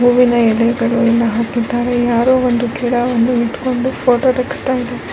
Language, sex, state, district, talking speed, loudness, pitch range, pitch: Kannada, female, Karnataka, Raichur, 115 wpm, -15 LUFS, 235-250 Hz, 245 Hz